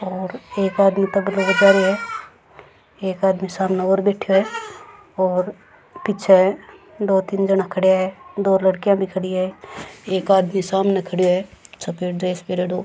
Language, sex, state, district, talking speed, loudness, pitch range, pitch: Rajasthani, female, Rajasthan, Churu, 155 wpm, -19 LUFS, 185-200 Hz, 190 Hz